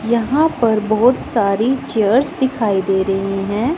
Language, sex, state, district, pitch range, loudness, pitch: Hindi, female, Punjab, Pathankot, 200-260 Hz, -16 LUFS, 225 Hz